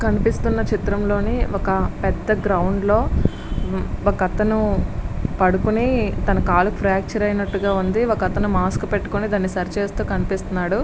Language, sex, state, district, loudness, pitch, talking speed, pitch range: Telugu, female, Andhra Pradesh, Srikakulam, -21 LUFS, 200 Hz, 110 wpm, 190-210 Hz